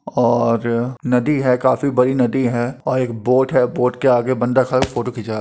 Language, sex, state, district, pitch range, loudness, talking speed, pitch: Hindi, male, Uttar Pradesh, Etah, 120-130 Hz, -17 LUFS, 220 wpm, 125 Hz